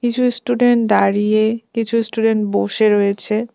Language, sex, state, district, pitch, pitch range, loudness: Bengali, female, West Bengal, Cooch Behar, 225 Hz, 210-240 Hz, -16 LUFS